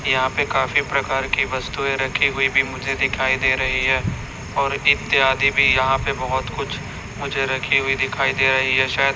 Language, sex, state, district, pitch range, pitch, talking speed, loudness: Hindi, male, Chhattisgarh, Raipur, 130-135 Hz, 135 Hz, 190 wpm, -19 LUFS